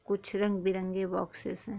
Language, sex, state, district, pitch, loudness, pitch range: Hindi, female, Jharkhand, Jamtara, 200 Hz, -32 LUFS, 190-205 Hz